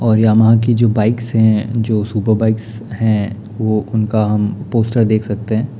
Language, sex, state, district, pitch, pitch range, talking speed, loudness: Hindi, male, Bihar, Darbhanga, 110 Hz, 110-115 Hz, 185 wpm, -15 LUFS